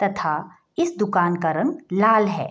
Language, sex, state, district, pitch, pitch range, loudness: Hindi, female, Bihar, Madhepura, 200 Hz, 175-220 Hz, -21 LUFS